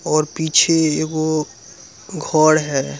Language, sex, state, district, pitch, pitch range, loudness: Hindi, male, Bihar, Muzaffarpur, 155 Hz, 150-155 Hz, -17 LUFS